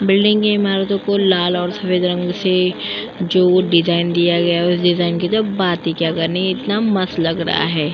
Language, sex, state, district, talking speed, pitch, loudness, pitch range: Hindi, female, Uttar Pradesh, Jyotiba Phule Nagar, 205 wpm, 180 Hz, -16 LUFS, 175-195 Hz